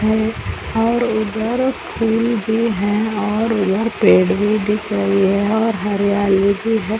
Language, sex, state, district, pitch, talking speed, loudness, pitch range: Hindi, female, Chhattisgarh, Rajnandgaon, 215 Hz, 155 wpm, -17 LUFS, 200-225 Hz